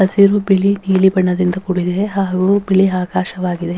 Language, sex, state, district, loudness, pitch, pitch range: Kannada, female, Karnataka, Dharwad, -15 LUFS, 190 Hz, 185-195 Hz